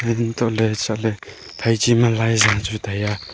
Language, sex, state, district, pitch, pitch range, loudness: Wancho, male, Arunachal Pradesh, Longding, 110 Hz, 105-115 Hz, -19 LUFS